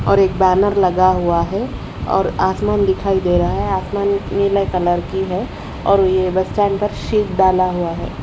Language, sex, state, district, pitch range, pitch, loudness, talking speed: Hindi, female, Odisha, Khordha, 185-200 Hz, 190 Hz, -17 LUFS, 180 wpm